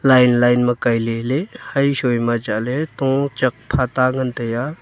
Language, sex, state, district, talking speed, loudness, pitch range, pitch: Wancho, male, Arunachal Pradesh, Longding, 160 wpm, -18 LUFS, 120-135 Hz, 125 Hz